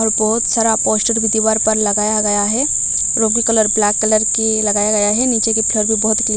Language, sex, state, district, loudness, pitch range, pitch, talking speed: Hindi, female, Odisha, Malkangiri, -12 LUFS, 215-225 Hz, 220 Hz, 265 wpm